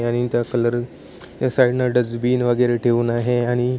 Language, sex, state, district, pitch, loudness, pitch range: Marathi, male, Maharashtra, Chandrapur, 120 Hz, -19 LUFS, 120-125 Hz